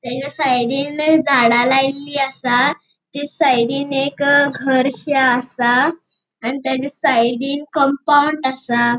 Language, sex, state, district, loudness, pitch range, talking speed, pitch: Konkani, female, Goa, North and South Goa, -16 LUFS, 250-285 Hz, 95 wpm, 270 Hz